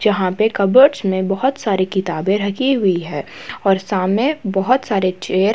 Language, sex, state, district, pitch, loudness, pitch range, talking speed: Hindi, female, Uttar Pradesh, Muzaffarnagar, 195 Hz, -17 LUFS, 190-220 Hz, 175 wpm